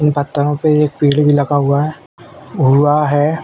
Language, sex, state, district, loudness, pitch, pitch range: Hindi, male, Uttar Pradesh, Ghazipur, -14 LUFS, 145 Hz, 145-150 Hz